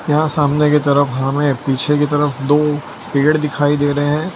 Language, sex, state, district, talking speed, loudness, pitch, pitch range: Hindi, male, Gujarat, Valsad, 195 wpm, -16 LUFS, 145 Hz, 140-150 Hz